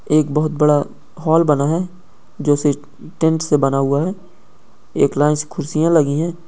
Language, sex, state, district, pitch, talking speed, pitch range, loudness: Hindi, male, Uttar Pradesh, Ghazipur, 155 Hz, 165 wpm, 145-165 Hz, -17 LUFS